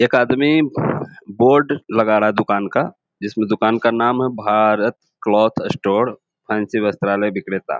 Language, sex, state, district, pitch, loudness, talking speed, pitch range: Hindi, male, Bihar, Jamui, 110 Hz, -18 LUFS, 145 wpm, 105-120 Hz